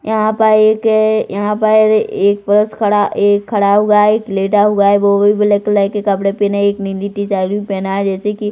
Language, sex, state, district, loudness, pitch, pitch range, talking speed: Hindi, female, Chhattisgarh, Rajnandgaon, -13 LUFS, 205 Hz, 200-210 Hz, 220 wpm